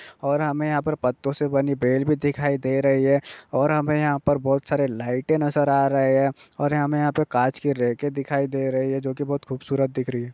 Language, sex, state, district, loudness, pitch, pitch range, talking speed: Hindi, male, Bihar, Gopalganj, -23 LUFS, 140 Hz, 135-145 Hz, 240 wpm